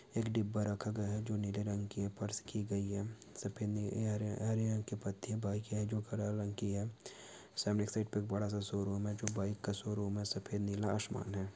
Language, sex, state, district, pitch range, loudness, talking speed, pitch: Hindi, male, Bihar, Saharsa, 100-105 Hz, -39 LUFS, 245 wpm, 105 Hz